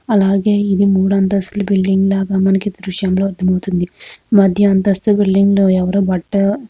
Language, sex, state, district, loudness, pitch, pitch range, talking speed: Telugu, female, Andhra Pradesh, Krishna, -14 LUFS, 195 Hz, 190-200 Hz, 170 wpm